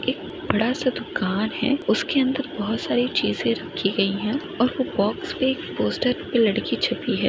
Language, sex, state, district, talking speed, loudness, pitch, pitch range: Hindi, female, Rajasthan, Nagaur, 195 wpm, -23 LUFS, 250 Hz, 210-270 Hz